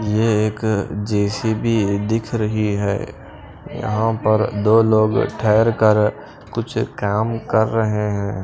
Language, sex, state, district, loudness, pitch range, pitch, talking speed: Hindi, male, Punjab, Pathankot, -19 LUFS, 105-110 Hz, 110 Hz, 115 wpm